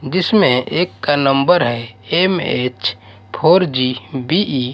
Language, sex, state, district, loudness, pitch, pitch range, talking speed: Hindi, male, Odisha, Malkangiri, -16 LUFS, 135 Hz, 120-175 Hz, 125 wpm